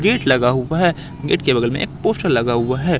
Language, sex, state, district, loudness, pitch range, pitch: Hindi, male, Madhya Pradesh, Katni, -18 LUFS, 125-160 Hz, 130 Hz